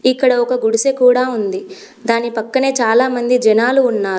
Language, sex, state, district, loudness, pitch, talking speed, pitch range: Telugu, female, Telangana, Komaram Bheem, -14 LUFS, 245 Hz, 160 wpm, 225-260 Hz